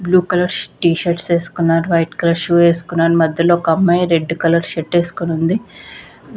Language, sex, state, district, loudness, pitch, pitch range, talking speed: Telugu, female, Andhra Pradesh, Visakhapatnam, -15 LUFS, 170 Hz, 165-175 Hz, 160 wpm